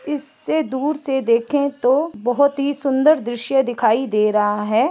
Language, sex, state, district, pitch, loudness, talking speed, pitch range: Hindi, female, Chhattisgarh, Bastar, 270 Hz, -19 LUFS, 160 wpm, 235-285 Hz